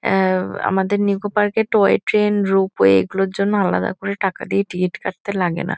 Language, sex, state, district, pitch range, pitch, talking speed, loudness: Bengali, female, West Bengal, Kolkata, 185-205 Hz, 195 Hz, 195 wpm, -18 LUFS